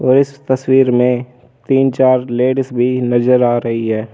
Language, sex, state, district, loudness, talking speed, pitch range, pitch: Hindi, male, Delhi, New Delhi, -14 LUFS, 175 wpm, 120-130 Hz, 125 Hz